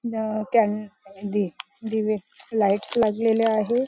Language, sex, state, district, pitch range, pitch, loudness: Marathi, female, Maharashtra, Nagpur, 205-225 Hz, 215 Hz, -24 LUFS